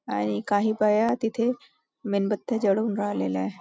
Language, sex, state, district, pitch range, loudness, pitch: Marathi, female, Maharashtra, Nagpur, 195-225 Hz, -25 LUFS, 205 Hz